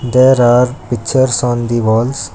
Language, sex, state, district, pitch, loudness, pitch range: English, male, Karnataka, Bangalore, 120 Hz, -12 LUFS, 120-130 Hz